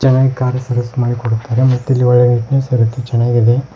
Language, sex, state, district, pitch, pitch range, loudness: Kannada, male, Karnataka, Koppal, 125 Hz, 120-130 Hz, -14 LUFS